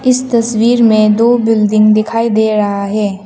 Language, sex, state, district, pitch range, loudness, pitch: Hindi, female, Arunachal Pradesh, Papum Pare, 215-230 Hz, -11 LUFS, 220 Hz